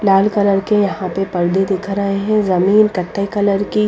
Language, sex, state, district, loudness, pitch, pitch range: Hindi, female, Bihar, Patna, -16 LUFS, 200 Hz, 195-205 Hz